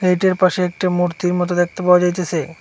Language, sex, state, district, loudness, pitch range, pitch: Bengali, male, Assam, Hailakandi, -17 LUFS, 175-180 Hz, 180 Hz